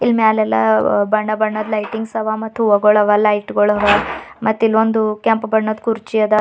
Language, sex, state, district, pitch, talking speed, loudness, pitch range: Kannada, female, Karnataka, Bidar, 215 Hz, 130 wpm, -16 LUFS, 210-220 Hz